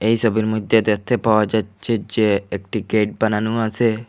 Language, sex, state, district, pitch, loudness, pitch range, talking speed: Bengali, male, Assam, Hailakandi, 110 Hz, -19 LUFS, 105-115 Hz, 160 wpm